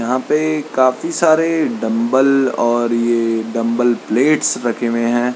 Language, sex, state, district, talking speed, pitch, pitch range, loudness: Hindi, male, Uttarakhand, Tehri Garhwal, 125 wpm, 120 Hz, 115-140 Hz, -16 LUFS